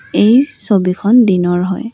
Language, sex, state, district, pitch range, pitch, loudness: Assamese, female, Assam, Kamrup Metropolitan, 185-245 Hz, 210 Hz, -12 LUFS